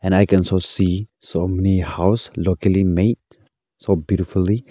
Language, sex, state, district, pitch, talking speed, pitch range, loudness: English, male, Arunachal Pradesh, Lower Dibang Valley, 95 Hz, 155 wpm, 95-100 Hz, -19 LUFS